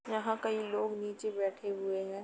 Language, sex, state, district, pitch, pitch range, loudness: Hindi, female, Uttar Pradesh, Etah, 210 Hz, 195-220 Hz, -36 LUFS